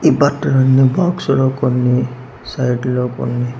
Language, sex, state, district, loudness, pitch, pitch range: Telugu, male, Andhra Pradesh, Manyam, -15 LUFS, 125 Hz, 125-130 Hz